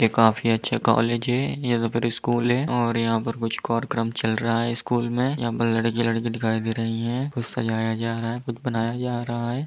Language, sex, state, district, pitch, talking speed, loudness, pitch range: Hindi, male, Bihar, East Champaran, 115 Hz, 235 wpm, -24 LUFS, 115-120 Hz